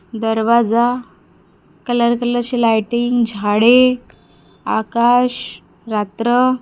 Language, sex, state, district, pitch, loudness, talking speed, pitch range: Marathi, female, Maharashtra, Gondia, 235 Hz, -16 LUFS, 65 wpm, 220-245 Hz